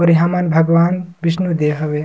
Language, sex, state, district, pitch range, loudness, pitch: Surgujia, male, Chhattisgarh, Sarguja, 160-175 Hz, -16 LUFS, 170 Hz